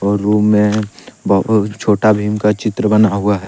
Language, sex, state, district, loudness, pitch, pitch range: Hindi, male, Jharkhand, Deoghar, -14 LUFS, 105 Hz, 100-105 Hz